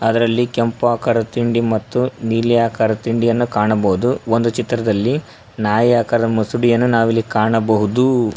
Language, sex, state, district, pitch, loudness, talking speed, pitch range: Kannada, male, Karnataka, Koppal, 115 Hz, -17 LUFS, 120 wpm, 110-120 Hz